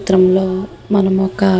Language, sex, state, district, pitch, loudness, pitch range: Telugu, female, Andhra Pradesh, Guntur, 190 Hz, -15 LUFS, 185-195 Hz